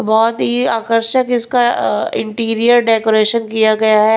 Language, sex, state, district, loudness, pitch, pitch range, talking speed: Hindi, female, Punjab, Pathankot, -13 LUFS, 230 Hz, 220-240 Hz, 130 wpm